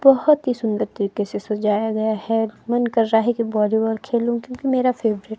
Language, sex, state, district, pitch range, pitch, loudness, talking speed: Hindi, female, Himachal Pradesh, Shimla, 215-240 Hz, 225 Hz, -21 LUFS, 210 wpm